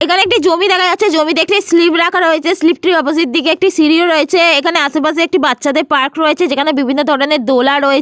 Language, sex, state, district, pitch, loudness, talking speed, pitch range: Bengali, female, Jharkhand, Sahebganj, 320 Hz, -11 LUFS, 215 wpm, 300-345 Hz